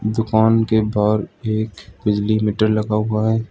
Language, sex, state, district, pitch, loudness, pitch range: Hindi, male, Arunachal Pradesh, Lower Dibang Valley, 110 Hz, -19 LUFS, 105-110 Hz